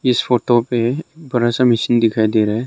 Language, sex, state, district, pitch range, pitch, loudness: Hindi, male, Arunachal Pradesh, Longding, 115-125 Hz, 120 Hz, -16 LUFS